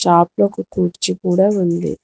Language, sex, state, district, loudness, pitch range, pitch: Telugu, female, Telangana, Hyderabad, -17 LUFS, 170-185 Hz, 175 Hz